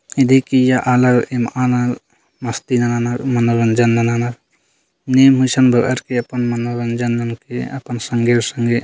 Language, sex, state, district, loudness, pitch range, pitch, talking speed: Sadri, male, Chhattisgarh, Jashpur, -16 LUFS, 120-130 Hz, 120 Hz, 70 wpm